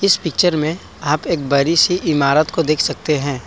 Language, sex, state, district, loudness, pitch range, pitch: Hindi, male, Assam, Kamrup Metropolitan, -17 LUFS, 145-170 Hz, 155 Hz